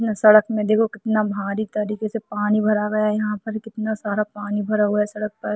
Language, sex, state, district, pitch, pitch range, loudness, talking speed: Hindi, female, Jharkhand, Sahebganj, 210 Hz, 210-215 Hz, -21 LUFS, 235 wpm